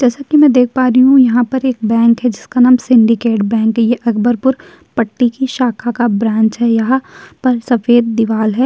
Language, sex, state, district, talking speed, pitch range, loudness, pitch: Hindi, female, Uttar Pradesh, Jyotiba Phule Nagar, 215 wpm, 230-255 Hz, -12 LUFS, 240 Hz